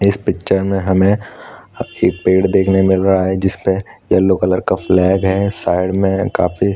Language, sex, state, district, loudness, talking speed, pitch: Hindi, male, Chhattisgarh, Korba, -15 LUFS, 175 wpm, 95 Hz